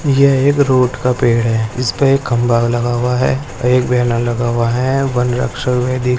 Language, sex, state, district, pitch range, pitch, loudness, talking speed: Hindi, male, Maharashtra, Dhule, 120-130 Hz, 125 Hz, -15 LUFS, 185 wpm